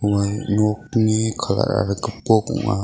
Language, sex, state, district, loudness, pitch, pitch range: Garo, male, Meghalaya, West Garo Hills, -20 LUFS, 105 Hz, 100-110 Hz